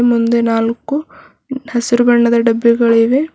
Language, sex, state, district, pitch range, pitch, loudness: Kannada, female, Karnataka, Bidar, 230-250 Hz, 235 Hz, -13 LUFS